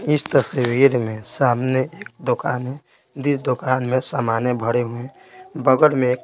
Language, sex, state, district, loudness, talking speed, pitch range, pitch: Hindi, male, Bihar, Patna, -20 LUFS, 175 wpm, 120-140 Hz, 130 Hz